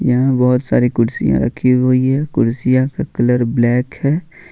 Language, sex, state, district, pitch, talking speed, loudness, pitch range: Hindi, male, Jharkhand, Ranchi, 125 Hz, 160 wpm, -15 LUFS, 120-130 Hz